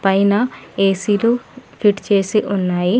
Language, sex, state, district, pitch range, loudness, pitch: Telugu, female, Telangana, Adilabad, 195-215 Hz, -17 LUFS, 200 Hz